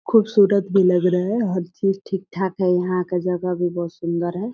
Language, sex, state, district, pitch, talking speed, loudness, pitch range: Hindi, female, Bihar, Purnia, 180 Hz, 210 wpm, -20 LUFS, 180-195 Hz